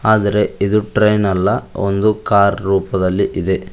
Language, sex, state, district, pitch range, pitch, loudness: Kannada, male, Karnataka, Koppal, 95-105 Hz, 100 Hz, -16 LUFS